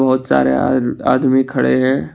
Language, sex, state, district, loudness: Hindi, male, Assam, Kamrup Metropolitan, -15 LUFS